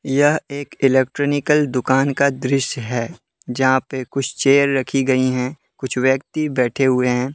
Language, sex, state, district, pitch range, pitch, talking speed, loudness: Hindi, male, Jharkhand, Deoghar, 130-140 Hz, 135 Hz, 155 wpm, -18 LUFS